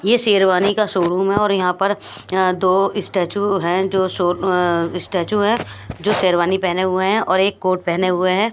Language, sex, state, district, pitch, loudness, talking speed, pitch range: Hindi, female, Odisha, Malkangiri, 185 Hz, -18 LUFS, 190 wpm, 180-200 Hz